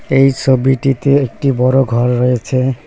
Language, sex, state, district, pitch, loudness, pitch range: Bengali, male, West Bengal, Cooch Behar, 135 Hz, -13 LUFS, 125-135 Hz